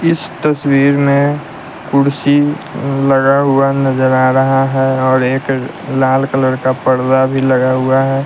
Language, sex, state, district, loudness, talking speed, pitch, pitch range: Hindi, male, Bihar, West Champaran, -13 LUFS, 145 wpm, 135 Hz, 130-140 Hz